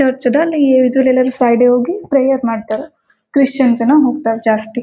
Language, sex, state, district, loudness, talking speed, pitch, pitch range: Kannada, female, Karnataka, Gulbarga, -13 LUFS, 110 wpm, 260 Hz, 240-280 Hz